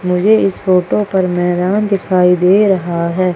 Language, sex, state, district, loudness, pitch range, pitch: Hindi, female, Madhya Pradesh, Umaria, -13 LUFS, 180-195 Hz, 185 Hz